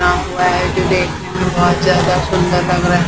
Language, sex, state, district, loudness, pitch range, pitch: Hindi, female, Maharashtra, Mumbai Suburban, -15 LUFS, 180-185 Hz, 180 Hz